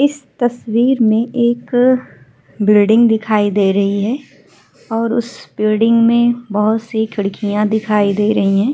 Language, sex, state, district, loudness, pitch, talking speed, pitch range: Hindi, female, Uttar Pradesh, Hamirpur, -15 LUFS, 220 Hz, 135 wpm, 205-240 Hz